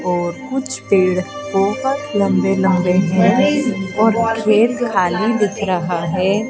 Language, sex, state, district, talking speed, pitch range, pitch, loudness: Hindi, female, Madhya Pradesh, Dhar, 110 wpm, 185-230 Hz, 200 Hz, -17 LUFS